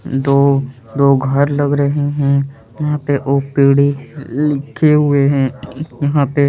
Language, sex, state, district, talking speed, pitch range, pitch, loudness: Hindi, male, Chandigarh, Chandigarh, 120 wpm, 140-145 Hz, 140 Hz, -15 LUFS